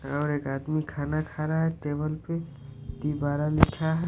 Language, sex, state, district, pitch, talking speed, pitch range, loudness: Hindi, male, Odisha, Sambalpur, 150 Hz, 175 wpm, 145-155 Hz, -28 LUFS